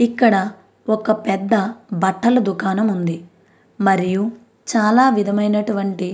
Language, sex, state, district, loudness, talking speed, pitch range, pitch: Telugu, female, Andhra Pradesh, Anantapur, -18 LUFS, 100 wpm, 190-220 Hz, 205 Hz